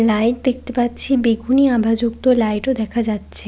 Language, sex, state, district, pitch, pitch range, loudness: Bengali, female, West Bengal, Kolkata, 235 Hz, 225-255 Hz, -17 LUFS